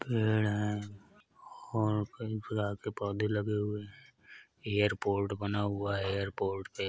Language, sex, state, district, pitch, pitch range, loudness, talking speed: Hindi, male, Uttar Pradesh, Varanasi, 105 Hz, 100-105 Hz, -33 LUFS, 155 wpm